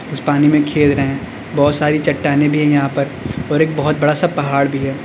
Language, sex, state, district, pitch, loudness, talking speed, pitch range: Hindi, male, Uttar Pradesh, Lalitpur, 145 Hz, -15 LUFS, 200 wpm, 140-150 Hz